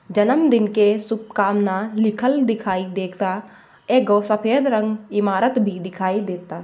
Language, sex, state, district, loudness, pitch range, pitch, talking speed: Bhojpuri, female, Bihar, Gopalganj, -20 LUFS, 195-225 Hz, 210 Hz, 115 wpm